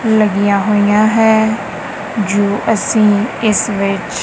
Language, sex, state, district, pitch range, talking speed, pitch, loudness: Punjabi, female, Punjab, Kapurthala, 205-220 Hz, 100 wpm, 210 Hz, -13 LUFS